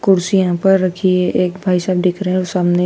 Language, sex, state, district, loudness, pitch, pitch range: Hindi, female, Madhya Pradesh, Dhar, -15 LUFS, 185 Hz, 180-190 Hz